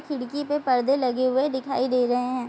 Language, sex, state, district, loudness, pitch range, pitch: Hindi, female, Bihar, Vaishali, -24 LUFS, 250-275 Hz, 255 Hz